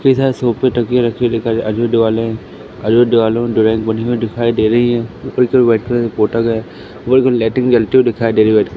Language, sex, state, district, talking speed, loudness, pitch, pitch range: Hindi, male, Madhya Pradesh, Katni, 130 wpm, -14 LUFS, 115 Hz, 110-120 Hz